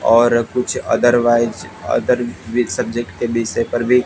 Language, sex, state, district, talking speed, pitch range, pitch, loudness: Hindi, male, Haryana, Jhajjar, 150 wpm, 115-120 Hz, 120 Hz, -17 LUFS